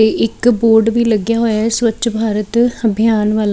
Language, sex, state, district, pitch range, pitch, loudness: Punjabi, female, Chandigarh, Chandigarh, 215-230 Hz, 225 Hz, -14 LUFS